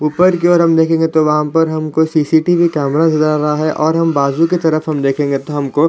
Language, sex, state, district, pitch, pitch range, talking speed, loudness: Hindi, male, Chhattisgarh, Raigarh, 155 Hz, 150-165 Hz, 225 wpm, -13 LUFS